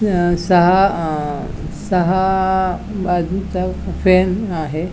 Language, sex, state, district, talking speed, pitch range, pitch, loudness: Marathi, female, Goa, North and South Goa, 95 wpm, 175-190 Hz, 185 Hz, -17 LUFS